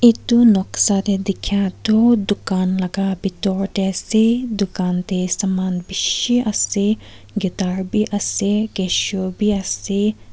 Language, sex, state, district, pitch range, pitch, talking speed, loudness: Nagamese, female, Nagaland, Kohima, 190-210 Hz, 200 Hz, 120 wpm, -19 LUFS